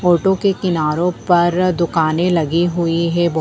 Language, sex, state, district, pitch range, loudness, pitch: Hindi, female, Bihar, Darbhanga, 170-180 Hz, -16 LUFS, 175 Hz